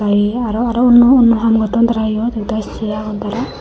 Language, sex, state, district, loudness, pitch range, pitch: Chakma, female, Tripura, Unakoti, -14 LUFS, 215-235 Hz, 225 Hz